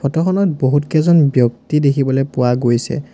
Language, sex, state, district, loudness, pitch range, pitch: Assamese, male, Assam, Sonitpur, -15 LUFS, 130-155 Hz, 140 Hz